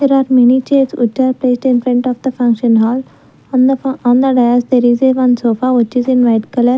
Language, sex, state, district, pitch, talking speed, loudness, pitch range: English, female, Punjab, Fazilka, 250 Hz, 255 wpm, -12 LUFS, 245-260 Hz